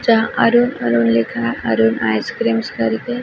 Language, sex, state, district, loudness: Hindi, female, Chhattisgarh, Raipur, -17 LUFS